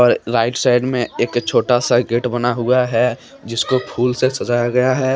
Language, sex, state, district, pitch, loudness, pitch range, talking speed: Hindi, male, Jharkhand, Deoghar, 125 Hz, -17 LUFS, 120-125 Hz, 185 wpm